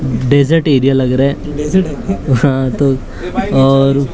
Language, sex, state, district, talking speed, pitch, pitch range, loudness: Hindi, male, Maharashtra, Mumbai Suburban, 115 wpm, 135 Hz, 135-145 Hz, -13 LUFS